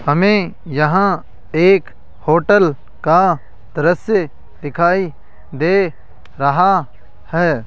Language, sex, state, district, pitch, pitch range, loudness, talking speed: Hindi, male, Rajasthan, Jaipur, 165 Hz, 140-190 Hz, -15 LUFS, 80 wpm